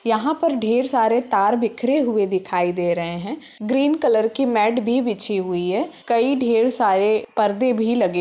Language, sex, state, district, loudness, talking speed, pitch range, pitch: Hindi, female, Bihar, Purnia, -20 LUFS, 190 wpm, 205-255 Hz, 230 Hz